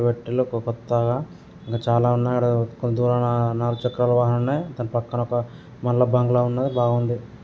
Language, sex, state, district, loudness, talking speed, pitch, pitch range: Telugu, male, Andhra Pradesh, Srikakulam, -22 LUFS, 90 wpm, 120 Hz, 120-125 Hz